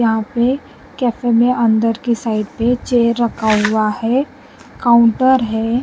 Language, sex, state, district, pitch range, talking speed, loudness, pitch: Hindi, female, Punjab, Pathankot, 225-250 Hz, 145 wpm, -15 LUFS, 235 Hz